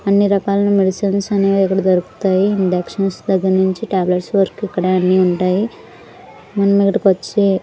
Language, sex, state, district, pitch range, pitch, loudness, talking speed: Telugu, female, Andhra Pradesh, Annamaya, 185-200 Hz, 195 Hz, -16 LUFS, 120 wpm